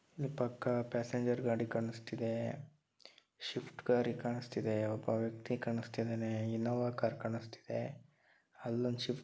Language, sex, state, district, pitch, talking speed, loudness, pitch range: Kannada, male, Karnataka, Dharwad, 115 Hz, 115 wpm, -38 LUFS, 115-120 Hz